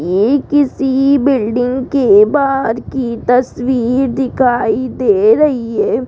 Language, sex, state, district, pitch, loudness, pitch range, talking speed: Hindi, female, Rajasthan, Jaipur, 260 Hz, -13 LUFS, 245-280 Hz, 110 wpm